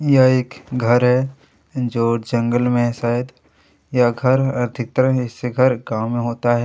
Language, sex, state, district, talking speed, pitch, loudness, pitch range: Hindi, male, Chhattisgarh, Kabirdham, 160 wpm, 125 Hz, -19 LUFS, 120-130 Hz